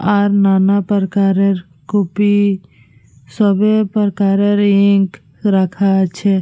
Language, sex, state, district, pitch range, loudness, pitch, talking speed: Bengali, female, Jharkhand, Jamtara, 190-205 Hz, -14 LUFS, 200 Hz, 75 wpm